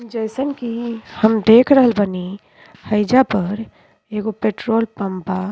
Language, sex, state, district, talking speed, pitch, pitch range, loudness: Bhojpuri, female, Uttar Pradesh, Ghazipur, 130 wpm, 220 Hz, 205-235 Hz, -18 LUFS